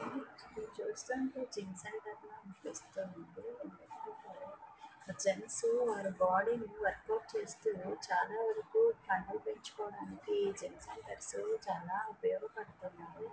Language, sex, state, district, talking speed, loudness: Telugu, female, Andhra Pradesh, Anantapur, 90 wpm, -39 LUFS